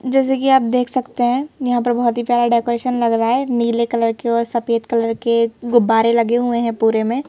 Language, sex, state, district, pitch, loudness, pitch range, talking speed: Hindi, female, Madhya Pradesh, Bhopal, 235 Hz, -17 LUFS, 230-245 Hz, 230 wpm